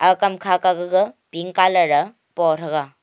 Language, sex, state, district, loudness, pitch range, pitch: Wancho, female, Arunachal Pradesh, Longding, -19 LUFS, 165-185 Hz, 180 Hz